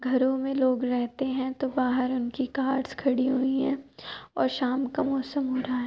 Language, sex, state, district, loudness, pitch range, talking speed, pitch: Hindi, male, Uttar Pradesh, Jyotiba Phule Nagar, -27 LUFS, 255-270 Hz, 195 wpm, 260 Hz